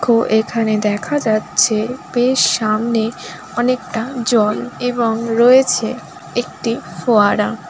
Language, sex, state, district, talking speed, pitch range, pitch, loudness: Bengali, female, West Bengal, Kolkata, 85 wpm, 215-245 Hz, 230 Hz, -16 LUFS